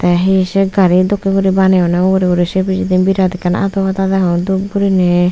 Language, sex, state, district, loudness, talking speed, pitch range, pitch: Chakma, female, Tripura, Unakoti, -13 LUFS, 205 wpm, 180-195 Hz, 190 Hz